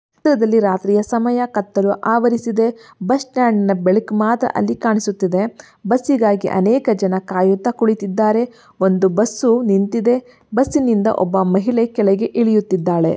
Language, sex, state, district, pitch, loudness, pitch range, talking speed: Kannada, female, Karnataka, Belgaum, 220 Hz, -17 LUFS, 195-235 Hz, 110 wpm